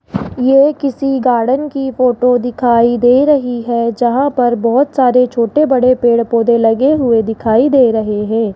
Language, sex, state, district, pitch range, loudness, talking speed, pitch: Hindi, male, Rajasthan, Jaipur, 235-265 Hz, -12 LUFS, 145 wpm, 245 Hz